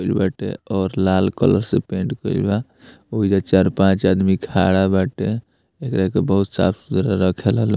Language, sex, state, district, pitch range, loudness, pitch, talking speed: Bhojpuri, male, Bihar, Muzaffarpur, 95-100 Hz, -19 LUFS, 95 Hz, 160 wpm